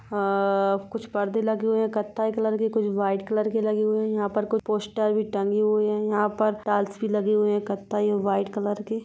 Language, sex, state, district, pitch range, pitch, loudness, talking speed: Hindi, female, Chhattisgarh, Rajnandgaon, 205-220 Hz, 210 Hz, -25 LUFS, 230 wpm